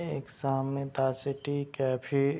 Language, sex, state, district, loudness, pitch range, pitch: Hindi, male, Bihar, Saharsa, -31 LUFS, 135-140 Hz, 140 Hz